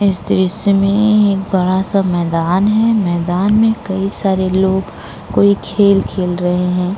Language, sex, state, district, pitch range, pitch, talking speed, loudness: Hindi, female, Uttar Pradesh, Jyotiba Phule Nagar, 180-200 Hz, 190 Hz, 155 wpm, -14 LUFS